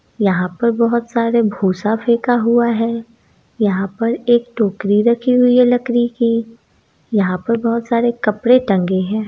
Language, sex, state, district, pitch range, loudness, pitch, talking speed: Hindi, female, Bihar, East Champaran, 210-235 Hz, -16 LUFS, 230 Hz, 155 wpm